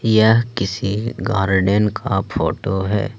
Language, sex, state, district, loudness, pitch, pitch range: Hindi, male, Jharkhand, Ranchi, -18 LUFS, 105 Hz, 95-110 Hz